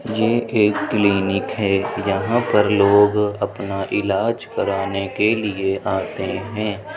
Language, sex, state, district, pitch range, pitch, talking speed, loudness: Hindi, male, Uttar Pradesh, Budaun, 100-105 Hz, 100 Hz, 120 wpm, -19 LUFS